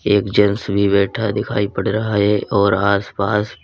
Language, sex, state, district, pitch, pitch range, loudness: Hindi, male, Uttar Pradesh, Lalitpur, 100 Hz, 100-105 Hz, -17 LUFS